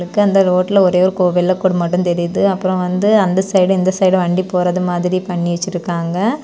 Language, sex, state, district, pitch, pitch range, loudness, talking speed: Tamil, female, Tamil Nadu, Kanyakumari, 185 Hz, 180-190 Hz, -15 LUFS, 185 wpm